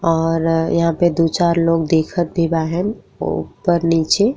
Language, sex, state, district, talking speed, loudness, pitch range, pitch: Bhojpuri, female, Uttar Pradesh, Ghazipur, 150 wpm, -17 LUFS, 160-170 Hz, 165 Hz